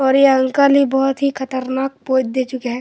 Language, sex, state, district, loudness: Hindi, male, Chhattisgarh, Kabirdham, -16 LUFS